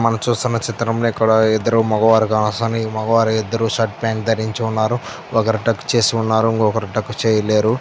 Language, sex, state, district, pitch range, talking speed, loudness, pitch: Telugu, male, Andhra Pradesh, Anantapur, 110-115 Hz, 155 wpm, -17 LUFS, 115 Hz